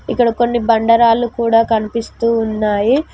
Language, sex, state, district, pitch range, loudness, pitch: Telugu, female, Telangana, Mahabubabad, 225-240 Hz, -15 LUFS, 230 Hz